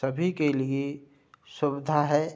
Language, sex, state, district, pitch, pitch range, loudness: Hindi, male, Uttar Pradesh, Budaun, 145 Hz, 140-150 Hz, -27 LUFS